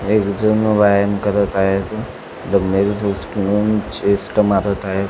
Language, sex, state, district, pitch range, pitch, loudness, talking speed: Marathi, male, Maharashtra, Sindhudurg, 100-105 Hz, 100 Hz, -17 LUFS, 130 wpm